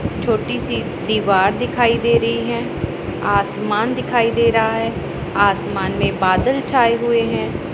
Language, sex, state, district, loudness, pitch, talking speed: Hindi, female, Punjab, Pathankot, -18 LUFS, 225 Hz, 140 wpm